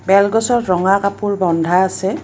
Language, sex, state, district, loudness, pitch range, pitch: Assamese, female, Assam, Kamrup Metropolitan, -15 LUFS, 185-200 Hz, 195 Hz